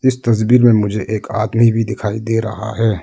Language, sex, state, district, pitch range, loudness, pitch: Hindi, male, Arunachal Pradesh, Lower Dibang Valley, 105-115 Hz, -15 LUFS, 110 Hz